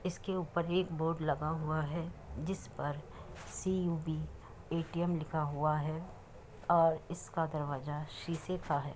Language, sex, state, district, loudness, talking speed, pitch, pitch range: Hindi, female, Uttar Pradesh, Muzaffarnagar, -36 LUFS, 125 wpm, 160 Hz, 145-170 Hz